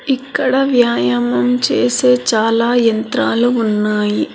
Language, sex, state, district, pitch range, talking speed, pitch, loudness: Telugu, female, Telangana, Hyderabad, 210-250 Hz, 85 wpm, 230 Hz, -14 LUFS